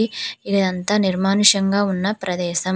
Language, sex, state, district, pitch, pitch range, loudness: Telugu, female, Telangana, Hyderabad, 195 Hz, 185-205 Hz, -19 LUFS